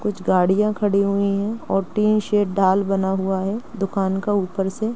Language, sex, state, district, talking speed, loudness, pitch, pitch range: Hindi, female, Bihar, East Champaran, 195 wpm, -21 LUFS, 200 Hz, 190-210 Hz